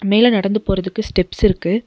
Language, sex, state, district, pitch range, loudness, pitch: Tamil, female, Tamil Nadu, Nilgiris, 185-215 Hz, -17 LUFS, 205 Hz